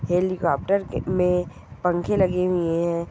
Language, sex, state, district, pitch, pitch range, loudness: Hindi, female, Goa, North and South Goa, 180 Hz, 170-185 Hz, -23 LUFS